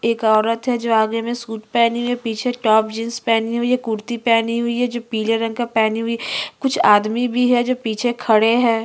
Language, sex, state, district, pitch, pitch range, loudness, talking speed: Hindi, female, Chhattisgarh, Bastar, 230 Hz, 225-240 Hz, -18 LUFS, 230 wpm